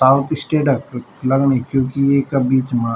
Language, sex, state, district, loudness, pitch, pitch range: Garhwali, male, Uttarakhand, Tehri Garhwal, -17 LUFS, 135 Hz, 130-140 Hz